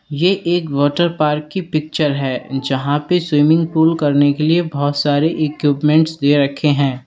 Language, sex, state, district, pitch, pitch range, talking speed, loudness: Hindi, male, Uttar Pradesh, Lalitpur, 150 Hz, 145-160 Hz, 160 wpm, -16 LUFS